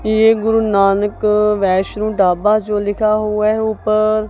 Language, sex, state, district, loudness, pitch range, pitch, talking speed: Hindi, female, Punjab, Kapurthala, -15 LUFS, 205-215 Hz, 215 Hz, 125 wpm